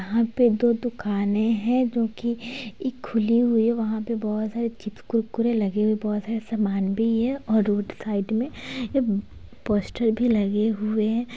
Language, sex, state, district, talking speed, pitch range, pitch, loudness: Hindi, female, Bihar, Sitamarhi, 180 wpm, 215-235 Hz, 225 Hz, -24 LUFS